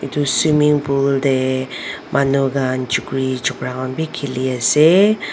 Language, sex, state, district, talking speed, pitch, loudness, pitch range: Nagamese, female, Nagaland, Dimapur, 115 wpm, 135 Hz, -17 LUFS, 130-145 Hz